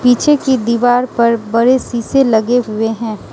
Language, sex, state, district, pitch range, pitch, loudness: Hindi, female, Mizoram, Aizawl, 230-255 Hz, 240 Hz, -13 LUFS